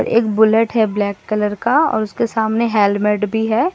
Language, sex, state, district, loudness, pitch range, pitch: Hindi, female, Assam, Sonitpur, -16 LUFS, 210-230 Hz, 220 Hz